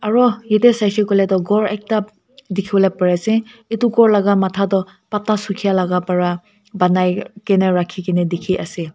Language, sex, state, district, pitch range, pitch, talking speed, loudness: Nagamese, female, Nagaland, Kohima, 185-215 Hz, 200 Hz, 165 wpm, -17 LUFS